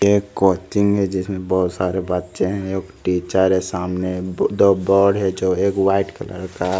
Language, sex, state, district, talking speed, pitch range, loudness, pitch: Hindi, male, Bihar, Lakhisarai, 185 wpm, 90-100 Hz, -19 LUFS, 95 Hz